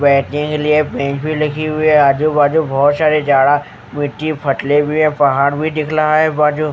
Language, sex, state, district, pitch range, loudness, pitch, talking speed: Hindi, male, Haryana, Jhajjar, 140-155 Hz, -14 LUFS, 150 Hz, 215 wpm